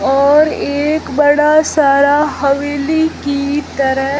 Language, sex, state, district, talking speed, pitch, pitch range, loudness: Hindi, female, Rajasthan, Jaisalmer, 100 wpm, 290 Hz, 280-300 Hz, -13 LUFS